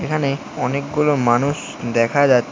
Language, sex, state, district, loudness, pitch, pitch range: Bengali, male, West Bengal, Alipurduar, -19 LUFS, 140 Hz, 125-150 Hz